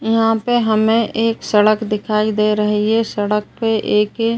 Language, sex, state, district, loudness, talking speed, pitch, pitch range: Hindi, female, Uttar Pradesh, Ghazipur, -16 LUFS, 165 wpm, 215 Hz, 210-225 Hz